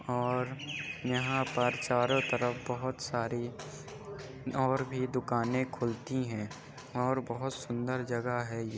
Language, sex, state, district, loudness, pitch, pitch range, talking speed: Hindi, male, Uttar Pradesh, Jyotiba Phule Nagar, -33 LUFS, 125 Hz, 120-130 Hz, 125 wpm